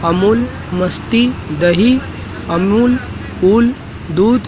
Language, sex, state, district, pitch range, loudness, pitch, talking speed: Hindi, male, Madhya Pradesh, Dhar, 175-240 Hz, -14 LUFS, 210 Hz, 80 wpm